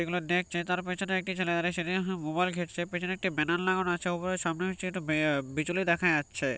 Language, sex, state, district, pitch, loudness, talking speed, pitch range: Bengali, male, West Bengal, North 24 Parganas, 175 Hz, -30 LUFS, 230 wpm, 170-185 Hz